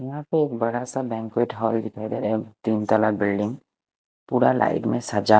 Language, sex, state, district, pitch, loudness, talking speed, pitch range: Hindi, male, Bihar, West Champaran, 110 Hz, -24 LUFS, 190 wpm, 110-120 Hz